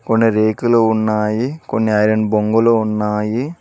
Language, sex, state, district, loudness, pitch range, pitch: Telugu, male, Telangana, Mahabubabad, -16 LUFS, 105-115 Hz, 110 Hz